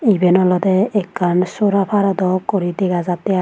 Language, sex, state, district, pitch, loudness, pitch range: Chakma, female, Tripura, Unakoti, 185 Hz, -16 LUFS, 180-200 Hz